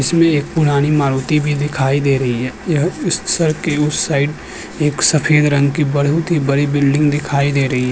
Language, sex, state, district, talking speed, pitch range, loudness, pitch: Hindi, male, Uttar Pradesh, Jyotiba Phule Nagar, 190 wpm, 140-150 Hz, -15 LUFS, 145 Hz